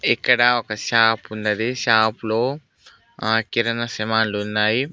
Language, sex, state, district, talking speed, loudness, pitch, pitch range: Telugu, male, Telangana, Mahabubabad, 120 wpm, -20 LUFS, 110 Hz, 110-120 Hz